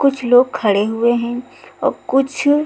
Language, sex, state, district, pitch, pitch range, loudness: Hindi, female, Chhattisgarh, Raipur, 245 Hz, 235-270 Hz, -16 LUFS